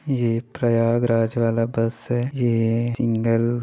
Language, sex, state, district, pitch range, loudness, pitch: Hindi, male, Chhattisgarh, Bilaspur, 115-120 Hz, -21 LUFS, 115 Hz